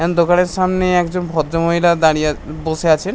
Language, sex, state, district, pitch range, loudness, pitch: Bengali, male, West Bengal, North 24 Parganas, 160-180 Hz, -16 LUFS, 170 Hz